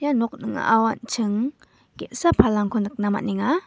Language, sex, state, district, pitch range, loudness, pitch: Garo, female, Meghalaya, West Garo Hills, 210-260 Hz, -22 LUFS, 225 Hz